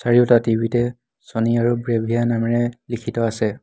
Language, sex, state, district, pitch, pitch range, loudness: Assamese, male, Assam, Hailakandi, 120 Hz, 115-120 Hz, -20 LUFS